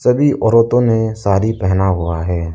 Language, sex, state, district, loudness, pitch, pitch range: Hindi, male, Arunachal Pradesh, Lower Dibang Valley, -15 LUFS, 110 Hz, 95-115 Hz